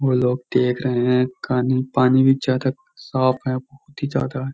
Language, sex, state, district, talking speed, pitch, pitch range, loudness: Hindi, male, Uttar Pradesh, Jyotiba Phule Nagar, 210 wpm, 130 Hz, 125-135 Hz, -20 LUFS